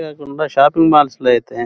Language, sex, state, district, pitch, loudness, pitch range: Telugu, male, Andhra Pradesh, Krishna, 145 Hz, -13 LUFS, 130-155 Hz